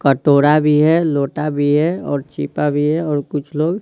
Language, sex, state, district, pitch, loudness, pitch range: Hindi, male, Bihar, Patna, 150 Hz, -16 LUFS, 145-155 Hz